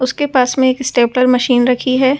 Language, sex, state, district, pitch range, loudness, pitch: Hindi, female, Delhi, New Delhi, 250-265 Hz, -13 LUFS, 255 Hz